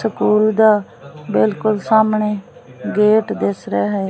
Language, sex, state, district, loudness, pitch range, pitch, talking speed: Punjabi, female, Punjab, Fazilka, -16 LUFS, 155-215 Hz, 210 Hz, 115 wpm